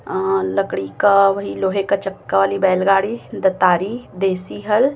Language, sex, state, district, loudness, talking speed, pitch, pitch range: Hindi, female, Chhattisgarh, Raipur, -18 LUFS, 145 wpm, 195 Hz, 180-200 Hz